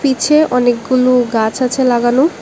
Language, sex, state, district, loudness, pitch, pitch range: Bengali, female, Tripura, West Tripura, -13 LUFS, 255 Hz, 240-265 Hz